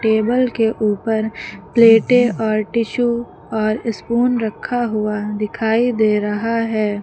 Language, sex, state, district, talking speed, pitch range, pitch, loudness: Hindi, female, Uttar Pradesh, Lucknow, 120 wpm, 215-235 Hz, 225 Hz, -17 LUFS